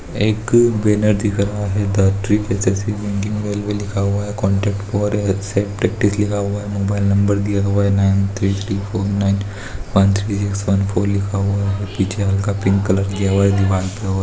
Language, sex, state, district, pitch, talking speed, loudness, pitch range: Hindi, male, Bihar, Muzaffarpur, 100 Hz, 150 wpm, -18 LUFS, 100-105 Hz